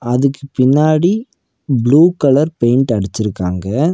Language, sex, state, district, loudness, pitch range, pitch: Tamil, male, Tamil Nadu, Nilgiris, -14 LUFS, 120-155 Hz, 135 Hz